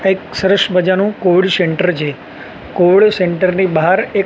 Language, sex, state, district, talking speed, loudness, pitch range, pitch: Gujarati, male, Gujarat, Gandhinagar, 140 wpm, -13 LUFS, 180-195 Hz, 185 Hz